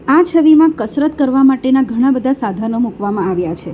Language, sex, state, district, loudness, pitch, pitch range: Gujarati, female, Gujarat, Valsad, -13 LUFS, 260 Hz, 210-280 Hz